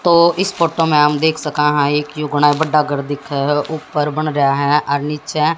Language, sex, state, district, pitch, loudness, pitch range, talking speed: Hindi, female, Haryana, Jhajjar, 150 Hz, -16 LUFS, 145-160 Hz, 225 wpm